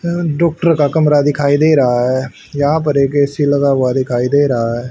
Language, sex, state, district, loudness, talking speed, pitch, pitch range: Hindi, male, Haryana, Charkhi Dadri, -14 LUFS, 220 wpm, 145 Hz, 130-150 Hz